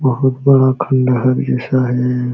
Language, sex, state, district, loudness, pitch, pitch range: Hindi, male, Uttar Pradesh, Jalaun, -14 LUFS, 130 Hz, 125-130 Hz